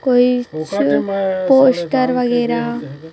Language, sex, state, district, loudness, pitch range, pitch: Hindi, female, Chhattisgarh, Raipur, -16 LUFS, 185-255 Hz, 240 Hz